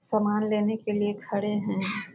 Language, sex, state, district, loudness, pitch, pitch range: Maithili, female, Bihar, Muzaffarpur, -27 LUFS, 210 Hz, 205-215 Hz